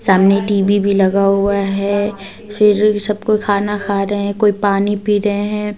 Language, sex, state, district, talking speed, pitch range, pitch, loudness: Hindi, female, Jharkhand, Deoghar, 165 wpm, 200-210 Hz, 205 Hz, -15 LUFS